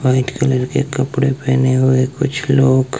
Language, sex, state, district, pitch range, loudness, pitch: Hindi, male, Himachal Pradesh, Shimla, 130-135 Hz, -16 LUFS, 130 Hz